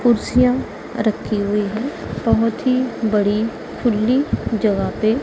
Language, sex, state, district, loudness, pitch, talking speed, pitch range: Hindi, female, Punjab, Pathankot, -19 LUFS, 225 Hz, 115 wpm, 215-250 Hz